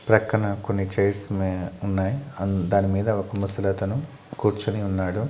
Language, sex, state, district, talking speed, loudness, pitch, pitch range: Telugu, male, Andhra Pradesh, Annamaya, 145 wpm, -25 LUFS, 100 Hz, 95-110 Hz